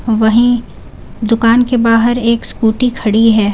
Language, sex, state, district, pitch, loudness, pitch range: Hindi, female, Jharkhand, Garhwa, 230 Hz, -12 LUFS, 220-240 Hz